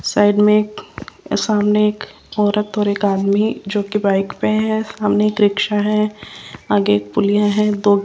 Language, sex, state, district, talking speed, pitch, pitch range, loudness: Hindi, female, Rajasthan, Jaipur, 155 wpm, 210 Hz, 200-210 Hz, -17 LUFS